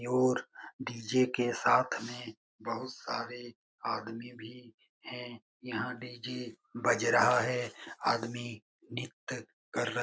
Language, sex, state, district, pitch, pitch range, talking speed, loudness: Hindi, male, Bihar, Jamui, 120 Hz, 115-125 Hz, 120 wpm, -33 LUFS